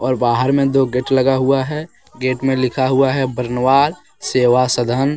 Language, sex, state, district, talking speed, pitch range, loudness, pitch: Hindi, male, Jharkhand, Deoghar, 195 wpm, 130-135 Hz, -16 LUFS, 130 Hz